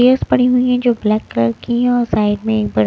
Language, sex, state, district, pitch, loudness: Hindi, female, Punjab, Kapurthala, 235 Hz, -15 LUFS